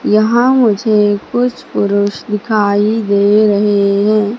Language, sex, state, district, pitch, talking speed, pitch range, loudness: Hindi, female, Madhya Pradesh, Katni, 210 Hz, 110 wpm, 205-220 Hz, -12 LUFS